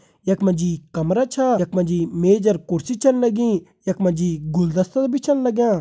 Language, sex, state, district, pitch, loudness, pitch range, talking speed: Garhwali, male, Uttarakhand, Uttarkashi, 190 Hz, -20 LUFS, 175-240 Hz, 175 wpm